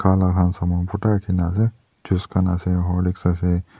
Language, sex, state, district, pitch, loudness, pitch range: Nagamese, male, Nagaland, Dimapur, 90 Hz, -21 LUFS, 90-100 Hz